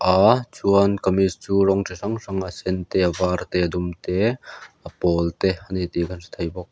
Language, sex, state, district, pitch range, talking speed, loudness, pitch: Mizo, male, Mizoram, Aizawl, 90-100 Hz, 240 wpm, -22 LUFS, 95 Hz